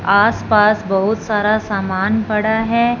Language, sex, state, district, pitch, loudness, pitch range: Hindi, female, Punjab, Fazilka, 210 Hz, -16 LUFS, 200-220 Hz